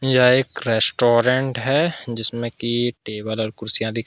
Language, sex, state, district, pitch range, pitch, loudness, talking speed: Hindi, male, Jharkhand, Ranchi, 110-125 Hz, 120 Hz, -19 LUFS, 145 wpm